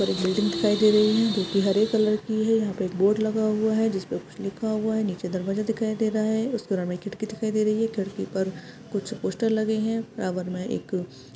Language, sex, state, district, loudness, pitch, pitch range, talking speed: Hindi, female, West Bengal, Purulia, -25 LUFS, 215 Hz, 195-220 Hz, 255 wpm